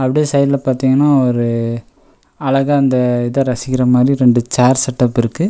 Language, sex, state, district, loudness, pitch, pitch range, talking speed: Tamil, male, Tamil Nadu, Nilgiris, -14 LUFS, 130 Hz, 125-135 Hz, 140 wpm